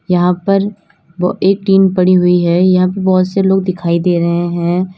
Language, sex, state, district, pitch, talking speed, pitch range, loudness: Hindi, female, Uttar Pradesh, Lalitpur, 180 Hz, 190 wpm, 175-190 Hz, -13 LUFS